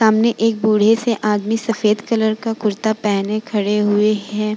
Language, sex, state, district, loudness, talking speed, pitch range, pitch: Hindi, female, Bihar, Vaishali, -17 LUFS, 170 wpm, 210-225 Hz, 215 Hz